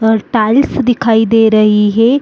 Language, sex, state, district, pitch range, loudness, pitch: Hindi, female, Uttarakhand, Uttarkashi, 215-245 Hz, -11 LUFS, 225 Hz